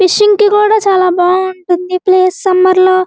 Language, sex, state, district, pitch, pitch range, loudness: Telugu, female, Andhra Pradesh, Guntur, 370 Hz, 370-395 Hz, -10 LUFS